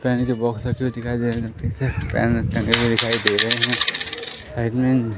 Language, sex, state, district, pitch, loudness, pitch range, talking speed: Hindi, male, Madhya Pradesh, Katni, 115 Hz, -21 LUFS, 115-125 Hz, 195 wpm